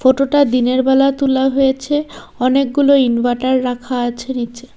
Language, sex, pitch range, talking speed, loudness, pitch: Bengali, female, 250-275 Hz, 125 wpm, -15 LUFS, 260 Hz